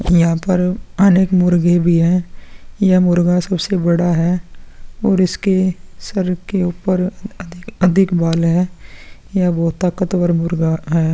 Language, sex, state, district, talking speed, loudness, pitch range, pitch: Hindi, male, Bihar, Vaishali, 135 wpm, -16 LUFS, 170-185 Hz, 180 Hz